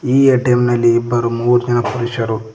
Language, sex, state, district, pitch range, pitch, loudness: Kannada, male, Karnataka, Koppal, 115-125 Hz, 120 Hz, -15 LUFS